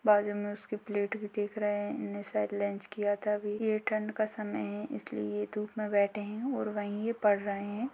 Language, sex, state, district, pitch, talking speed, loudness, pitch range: Hindi, female, Uttar Pradesh, Ghazipur, 210 Hz, 220 wpm, -33 LUFS, 205-215 Hz